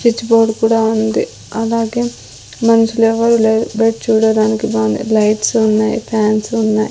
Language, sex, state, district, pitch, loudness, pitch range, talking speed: Telugu, female, Andhra Pradesh, Sri Satya Sai, 225 Hz, -14 LUFS, 220-230 Hz, 115 wpm